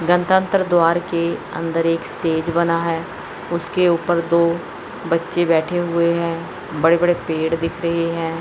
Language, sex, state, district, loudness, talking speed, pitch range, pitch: Hindi, male, Chandigarh, Chandigarh, -19 LUFS, 150 wpm, 165-175 Hz, 170 Hz